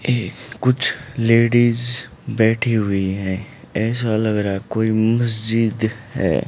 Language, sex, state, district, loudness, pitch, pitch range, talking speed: Hindi, male, Haryana, Charkhi Dadri, -17 LUFS, 115 Hz, 110-120 Hz, 110 wpm